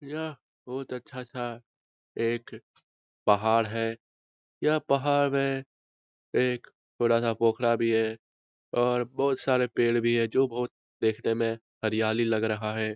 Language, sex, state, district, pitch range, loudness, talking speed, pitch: Hindi, male, Bihar, Lakhisarai, 110-130 Hz, -28 LUFS, 140 wpm, 115 Hz